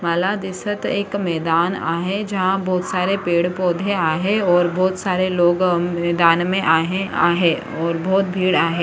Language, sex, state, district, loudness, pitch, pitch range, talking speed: Marathi, female, Maharashtra, Sindhudurg, -19 LUFS, 180 Hz, 170-190 Hz, 155 wpm